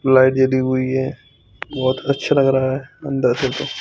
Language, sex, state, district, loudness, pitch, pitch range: Hindi, male, Chandigarh, Chandigarh, -18 LUFS, 130 Hz, 130-135 Hz